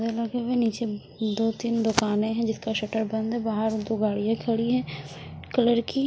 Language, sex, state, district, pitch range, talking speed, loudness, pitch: Hindi, female, Odisha, Sambalpur, 220-235 Hz, 160 wpm, -26 LUFS, 225 Hz